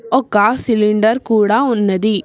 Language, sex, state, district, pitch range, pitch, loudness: Telugu, female, Telangana, Hyderabad, 210-240 Hz, 220 Hz, -14 LUFS